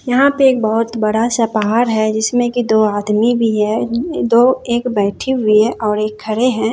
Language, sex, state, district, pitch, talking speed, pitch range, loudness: Hindi, female, Bihar, Katihar, 225 Hz, 195 wpm, 215-245 Hz, -15 LUFS